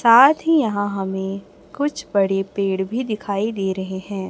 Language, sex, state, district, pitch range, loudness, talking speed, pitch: Hindi, male, Chhattisgarh, Raipur, 195-230 Hz, -20 LUFS, 165 wpm, 200 Hz